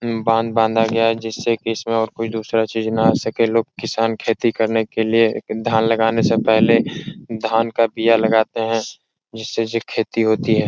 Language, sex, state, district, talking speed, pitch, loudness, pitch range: Hindi, male, Bihar, Jahanabad, 200 wpm, 115 Hz, -18 LUFS, 110-115 Hz